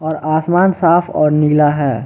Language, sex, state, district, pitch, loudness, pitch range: Hindi, male, Jharkhand, Ranchi, 155 Hz, -13 LUFS, 150-170 Hz